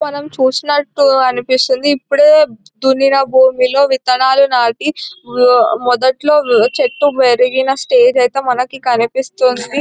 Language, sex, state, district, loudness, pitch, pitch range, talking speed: Telugu, male, Telangana, Nalgonda, -12 LUFS, 265 Hz, 250-290 Hz, 90 wpm